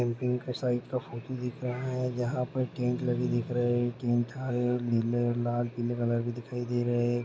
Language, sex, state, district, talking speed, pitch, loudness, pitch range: Hindi, male, Bihar, Purnia, 230 wpm, 120 Hz, -31 LUFS, 120-125 Hz